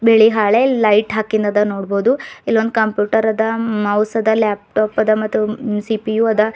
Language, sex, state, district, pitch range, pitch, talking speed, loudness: Kannada, female, Karnataka, Bidar, 210-225 Hz, 220 Hz, 145 wpm, -16 LUFS